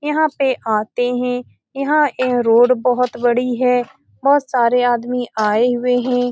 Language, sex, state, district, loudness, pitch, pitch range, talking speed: Hindi, female, Bihar, Saran, -17 LUFS, 250 Hz, 245-255 Hz, 140 wpm